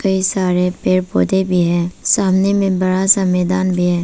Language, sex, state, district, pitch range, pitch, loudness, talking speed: Hindi, female, Arunachal Pradesh, Papum Pare, 180-190 Hz, 185 Hz, -15 LUFS, 180 wpm